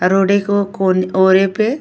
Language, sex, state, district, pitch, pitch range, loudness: Bhojpuri, female, Uttar Pradesh, Gorakhpur, 195 Hz, 190-200 Hz, -14 LUFS